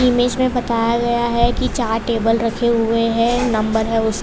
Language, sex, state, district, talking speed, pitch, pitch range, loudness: Hindi, female, Gujarat, Valsad, 215 wpm, 235 Hz, 225-240 Hz, -17 LUFS